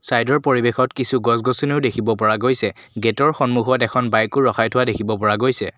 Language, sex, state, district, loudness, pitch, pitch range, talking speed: Assamese, male, Assam, Kamrup Metropolitan, -18 LUFS, 125 Hz, 115-130 Hz, 165 wpm